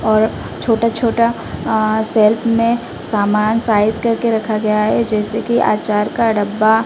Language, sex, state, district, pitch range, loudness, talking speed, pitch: Hindi, female, Odisha, Malkangiri, 215-230 Hz, -16 LUFS, 150 wpm, 220 Hz